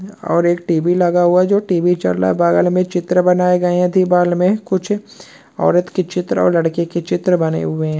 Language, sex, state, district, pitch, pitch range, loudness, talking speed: Hindi, male, West Bengal, Purulia, 180 Hz, 170-185 Hz, -15 LUFS, 210 wpm